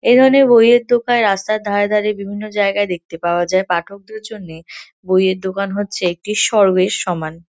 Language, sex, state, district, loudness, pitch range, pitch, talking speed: Bengali, female, West Bengal, North 24 Parganas, -15 LUFS, 185-215 Hz, 200 Hz, 160 wpm